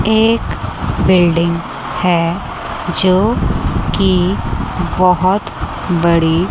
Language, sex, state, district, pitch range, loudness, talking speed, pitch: Hindi, female, Chandigarh, Chandigarh, 170-190 Hz, -15 LUFS, 65 wpm, 180 Hz